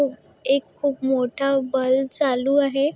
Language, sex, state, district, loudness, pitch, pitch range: Marathi, female, Maharashtra, Chandrapur, -22 LUFS, 270 Hz, 265-280 Hz